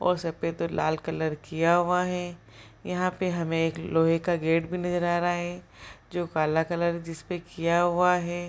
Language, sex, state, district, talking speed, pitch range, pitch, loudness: Hindi, female, Bihar, Supaul, 190 wpm, 165-175 Hz, 170 Hz, -27 LUFS